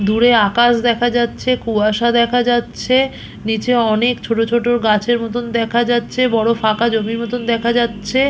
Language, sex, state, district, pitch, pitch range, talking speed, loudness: Bengali, female, West Bengal, Purulia, 235 Hz, 225-240 Hz, 150 wpm, -16 LUFS